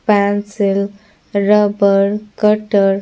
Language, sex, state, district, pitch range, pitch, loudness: Hindi, female, Bihar, Patna, 200-210 Hz, 205 Hz, -15 LUFS